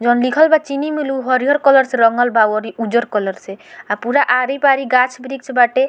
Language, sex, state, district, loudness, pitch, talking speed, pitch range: Bhojpuri, female, Bihar, Muzaffarpur, -15 LUFS, 255 Hz, 205 wpm, 235-275 Hz